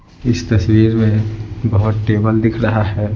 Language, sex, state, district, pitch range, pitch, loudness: Hindi, male, Bihar, Patna, 105-110 Hz, 110 Hz, -15 LUFS